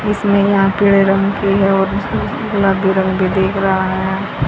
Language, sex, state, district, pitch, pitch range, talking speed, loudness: Hindi, female, Haryana, Rohtak, 195 Hz, 190-200 Hz, 175 wpm, -15 LUFS